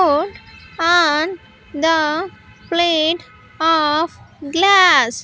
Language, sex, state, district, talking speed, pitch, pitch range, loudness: English, female, Andhra Pradesh, Sri Satya Sai, 55 wpm, 325 Hz, 310-350 Hz, -16 LUFS